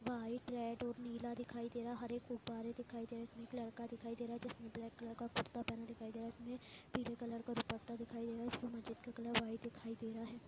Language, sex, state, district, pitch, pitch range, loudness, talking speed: Hindi, female, Bihar, Lakhisarai, 235 Hz, 230-240 Hz, -46 LUFS, 270 wpm